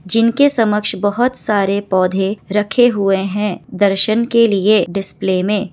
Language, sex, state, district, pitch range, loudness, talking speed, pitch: Hindi, female, Bihar, Kishanganj, 195-225 Hz, -15 LUFS, 135 wpm, 205 Hz